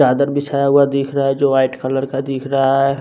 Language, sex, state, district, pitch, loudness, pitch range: Hindi, male, Bihar, West Champaran, 140 Hz, -16 LUFS, 135-140 Hz